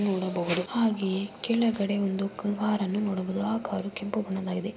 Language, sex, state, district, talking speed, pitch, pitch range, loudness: Kannada, female, Karnataka, Mysore, 140 wpm, 200 Hz, 190-210 Hz, -29 LUFS